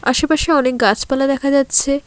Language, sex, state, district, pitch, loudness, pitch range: Bengali, female, West Bengal, Alipurduar, 275 Hz, -15 LUFS, 270-290 Hz